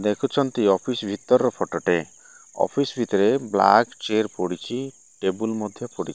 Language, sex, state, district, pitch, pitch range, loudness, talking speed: Odia, male, Odisha, Malkangiri, 110 Hz, 100-125 Hz, -23 LUFS, 145 wpm